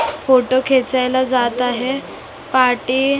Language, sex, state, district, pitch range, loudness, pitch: Marathi, female, Maharashtra, Mumbai Suburban, 250-265 Hz, -17 LUFS, 260 Hz